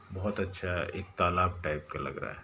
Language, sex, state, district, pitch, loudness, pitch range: Hindi, male, Bihar, Sitamarhi, 90 Hz, -32 LUFS, 90-95 Hz